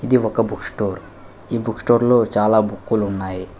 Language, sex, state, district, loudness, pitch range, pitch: Telugu, male, Telangana, Hyderabad, -19 LUFS, 100-115 Hz, 105 Hz